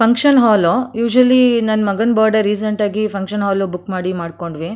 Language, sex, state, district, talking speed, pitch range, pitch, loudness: Kannada, female, Karnataka, Mysore, 190 wpm, 195-235 Hz, 215 Hz, -15 LUFS